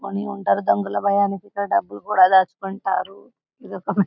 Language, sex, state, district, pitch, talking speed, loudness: Telugu, female, Telangana, Karimnagar, 195 Hz, 120 wpm, -21 LUFS